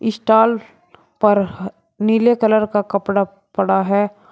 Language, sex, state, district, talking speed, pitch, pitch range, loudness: Hindi, male, Uttar Pradesh, Shamli, 110 wpm, 205 Hz, 200-220 Hz, -17 LUFS